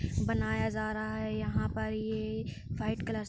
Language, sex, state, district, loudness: Hindi, female, Uttar Pradesh, Hamirpur, -34 LUFS